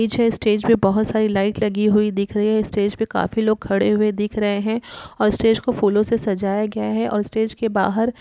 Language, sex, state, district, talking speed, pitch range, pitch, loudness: Hindi, female, Uttar Pradesh, Deoria, 240 wpm, 205-220 Hz, 215 Hz, -19 LUFS